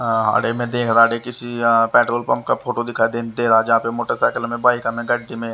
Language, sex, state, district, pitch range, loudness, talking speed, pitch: Hindi, male, Haryana, Rohtak, 115-120 Hz, -18 LUFS, 160 wpm, 115 Hz